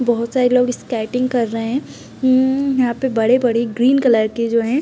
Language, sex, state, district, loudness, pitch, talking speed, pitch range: Hindi, female, Uttar Pradesh, Gorakhpur, -17 LUFS, 245 Hz, 225 wpm, 230-260 Hz